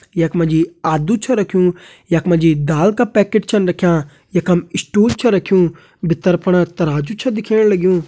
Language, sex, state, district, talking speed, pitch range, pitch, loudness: Hindi, male, Uttarakhand, Tehri Garhwal, 180 wpm, 165-205 Hz, 180 Hz, -15 LUFS